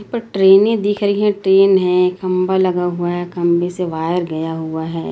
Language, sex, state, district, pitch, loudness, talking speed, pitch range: Hindi, female, Chhattisgarh, Raipur, 180 Hz, -16 LUFS, 200 wpm, 175-195 Hz